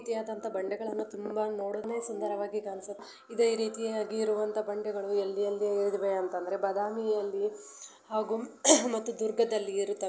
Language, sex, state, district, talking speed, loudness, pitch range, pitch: Kannada, female, Karnataka, Belgaum, 125 wpm, -31 LUFS, 205-225 Hz, 215 Hz